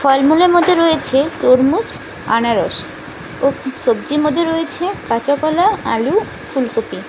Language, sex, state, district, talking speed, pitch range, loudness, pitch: Bengali, female, West Bengal, Cooch Behar, 110 wpm, 265-345 Hz, -15 LUFS, 300 Hz